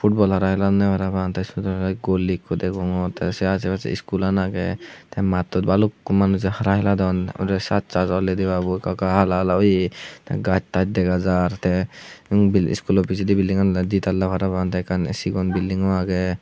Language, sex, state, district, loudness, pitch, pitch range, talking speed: Chakma, male, Tripura, Unakoti, -21 LUFS, 95 Hz, 90-95 Hz, 180 wpm